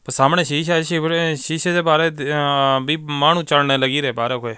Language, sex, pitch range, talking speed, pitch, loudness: Punjabi, male, 135-165 Hz, 145 wpm, 150 Hz, -18 LUFS